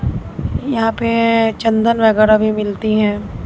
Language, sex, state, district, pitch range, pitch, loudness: Hindi, female, Bihar, Katihar, 215-230 Hz, 220 Hz, -15 LUFS